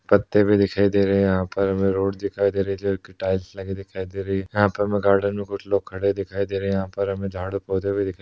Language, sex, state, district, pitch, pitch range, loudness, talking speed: Hindi, male, Uttar Pradesh, Hamirpur, 100 Hz, 95-100 Hz, -23 LUFS, 305 wpm